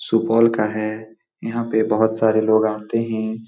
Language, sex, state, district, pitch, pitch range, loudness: Hindi, male, Bihar, Supaul, 110 Hz, 110-115 Hz, -19 LUFS